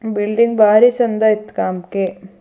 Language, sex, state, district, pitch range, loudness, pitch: Kannada, female, Karnataka, Shimoga, 190-225 Hz, -15 LUFS, 215 Hz